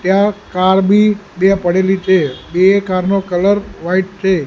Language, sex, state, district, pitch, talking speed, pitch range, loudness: Gujarati, male, Gujarat, Gandhinagar, 190 Hz, 160 wpm, 185-195 Hz, -14 LUFS